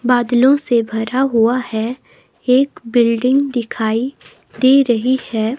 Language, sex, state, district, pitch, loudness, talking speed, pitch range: Hindi, female, Himachal Pradesh, Shimla, 245 Hz, -16 LUFS, 120 wpm, 230-260 Hz